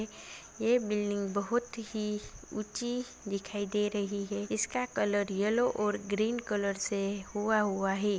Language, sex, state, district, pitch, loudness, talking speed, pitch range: Hindi, female, Bihar, Kishanganj, 210 Hz, -32 LUFS, 140 wpm, 200-220 Hz